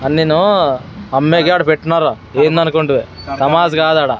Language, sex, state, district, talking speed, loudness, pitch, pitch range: Telugu, male, Andhra Pradesh, Sri Satya Sai, 100 wpm, -13 LUFS, 160 Hz, 155-165 Hz